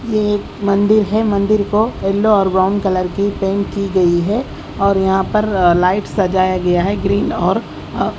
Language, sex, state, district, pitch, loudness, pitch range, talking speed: Hindi, female, Odisha, Khordha, 200 Hz, -15 LUFS, 190-205 Hz, 190 wpm